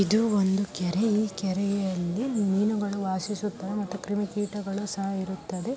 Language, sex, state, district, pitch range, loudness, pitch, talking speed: Kannada, female, Karnataka, Chamarajanagar, 190-210 Hz, -28 LUFS, 200 Hz, 125 wpm